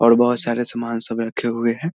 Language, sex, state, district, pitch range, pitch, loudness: Hindi, male, Bihar, Muzaffarpur, 115-120 Hz, 115 Hz, -20 LUFS